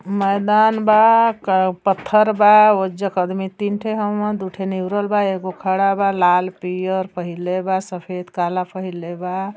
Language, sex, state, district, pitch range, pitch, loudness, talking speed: Bhojpuri, female, Uttar Pradesh, Ghazipur, 185-205 Hz, 190 Hz, -18 LUFS, 165 wpm